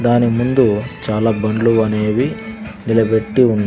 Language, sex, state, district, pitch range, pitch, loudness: Telugu, male, Andhra Pradesh, Sri Satya Sai, 110-125 Hz, 115 Hz, -16 LUFS